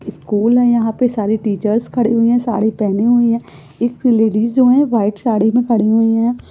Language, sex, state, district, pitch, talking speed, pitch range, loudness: Hindi, female, Uttar Pradesh, Etah, 230 Hz, 220 wpm, 220-240 Hz, -15 LUFS